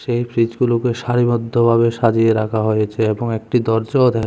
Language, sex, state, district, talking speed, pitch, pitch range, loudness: Bengali, male, Tripura, West Tripura, 140 wpm, 115 Hz, 110-120 Hz, -17 LUFS